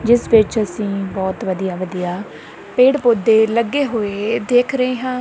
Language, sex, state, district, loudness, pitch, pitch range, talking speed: Punjabi, female, Punjab, Kapurthala, -17 LUFS, 220 Hz, 195-245 Hz, 150 wpm